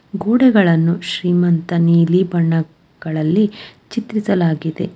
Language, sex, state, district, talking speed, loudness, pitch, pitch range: Kannada, female, Karnataka, Bangalore, 60 wpm, -16 LUFS, 175 Hz, 165-200 Hz